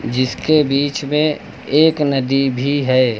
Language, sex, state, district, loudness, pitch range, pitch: Hindi, male, Uttar Pradesh, Lucknow, -16 LUFS, 130-150 Hz, 140 Hz